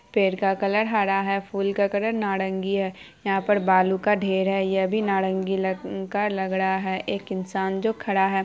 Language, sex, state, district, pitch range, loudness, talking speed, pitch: Hindi, female, Bihar, Araria, 190-200 Hz, -24 LUFS, 200 wpm, 195 Hz